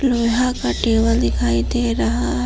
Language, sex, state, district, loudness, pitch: Hindi, female, Jharkhand, Palamu, -18 LUFS, 225 Hz